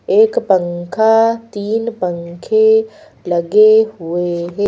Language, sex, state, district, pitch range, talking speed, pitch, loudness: Hindi, female, Madhya Pradesh, Bhopal, 175-230 Hz, 90 wpm, 210 Hz, -14 LUFS